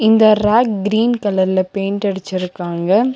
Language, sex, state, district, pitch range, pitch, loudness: Tamil, female, Tamil Nadu, Nilgiris, 185-220 Hz, 200 Hz, -16 LUFS